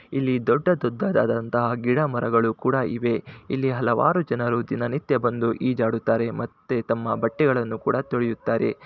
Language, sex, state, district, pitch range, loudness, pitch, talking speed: Kannada, male, Karnataka, Shimoga, 115-130 Hz, -23 LUFS, 120 Hz, 115 wpm